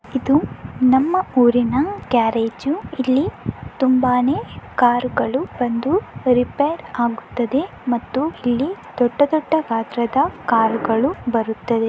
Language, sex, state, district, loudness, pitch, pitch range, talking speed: Kannada, female, Karnataka, Dakshina Kannada, -19 LUFS, 250 Hz, 235-285 Hz, 95 wpm